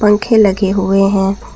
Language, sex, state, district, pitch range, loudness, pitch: Hindi, female, Jharkhand, Garhwa, 195-210 Hz, -12 LUFS, 195 Hz